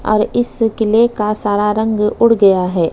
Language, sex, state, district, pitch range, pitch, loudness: Hindi, female, Uttar Pradesh, Budaun, 205-225 Hz, 215 Hz, -13 LUFS